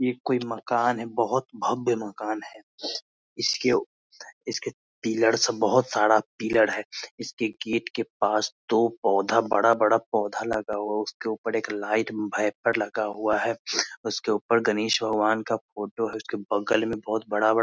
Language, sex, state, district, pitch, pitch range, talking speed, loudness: Hindi, male, Bihar, Muzaffarpur, 110 Hz, 105-115 Hz, 165 wpm, -26 LUFS